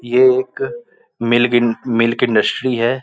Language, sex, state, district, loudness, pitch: Hindi, male, Uttar Pradesh, Gorakhpur, -16 LUFS, 125 Hz